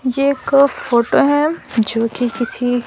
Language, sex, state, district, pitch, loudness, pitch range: Hindi, female, Bihar, Patna, 250 Hz, -16 LUFS, 235-280 Hz